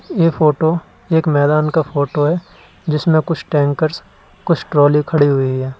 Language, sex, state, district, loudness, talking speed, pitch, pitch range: Hindi, male, Uttar Pradesh, Lalitpur, -16 LUFS, 155 wpm, 150 Hz, 145-160 Hz